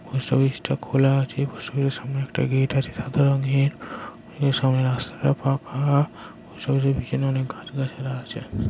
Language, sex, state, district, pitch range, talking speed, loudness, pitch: Bengali, male, West Bengal, Paschim Medinipur, 130-140 Hz, 160 wpm, -24 LUFS, 135 Hz